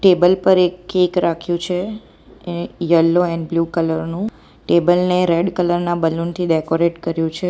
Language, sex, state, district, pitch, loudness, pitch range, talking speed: Gujarati, female, Gujarat, Valsad, 175 Hz, -18 LUFS, 165-180 Hz, 175 wpm